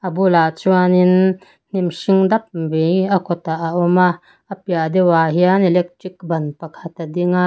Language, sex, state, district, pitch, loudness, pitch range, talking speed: Mizo, female, Mizoram, Aizawl, 180 Hz, -16 LUFS, 165-185 Hz, 175 wpm